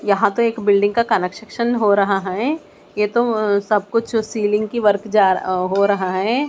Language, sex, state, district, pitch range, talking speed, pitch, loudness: Hindi, female, Maharashtra, Mumbai Suburban, 200-230 Hz, 185 wpm, 210 Hz, -18 LUFS